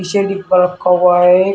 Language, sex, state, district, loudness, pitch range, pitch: Hindi, male, Uttar Pradesh, Shamli, -12 LUFS, 180-195 Hz, 180 Hz